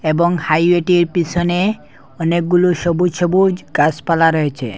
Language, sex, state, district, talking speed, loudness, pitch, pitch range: Bengali, male, Assam, Hailakandi, 100 wpm, -15 LUFS, 170 Hz, 155-175 Hz